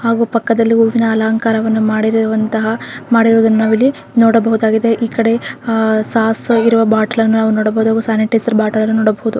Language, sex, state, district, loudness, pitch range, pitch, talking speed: Kannada, female, Karnataka, Raichur, -13 LUFS, 220-230 Hz, 225 Hz, 130 wpm